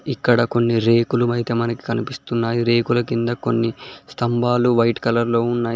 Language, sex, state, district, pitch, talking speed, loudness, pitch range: Telugu, male, Telangana, Mahabubabad, 115 Hz, 145 wpm, -19 LUFS, 115-120 Hz